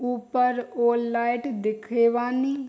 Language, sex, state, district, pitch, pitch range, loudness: Bhojpuri, female, Bihar, East Champaran, 240 Hz, 235-250 Hz, -24 LUFS